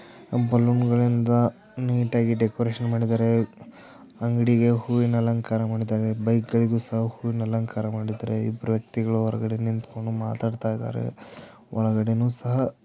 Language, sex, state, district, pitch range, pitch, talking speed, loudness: Kannada, male, Karnataka, Belgaum, 110-120 Hz, 115 Hz, 105 wpm, -25 LUFS